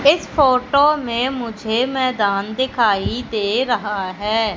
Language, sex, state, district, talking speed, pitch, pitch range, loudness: Hindi, female, Madhya Pradesh, Katni, 120 wpm, 240 Hz, 215-260 Hz, -18 LUFS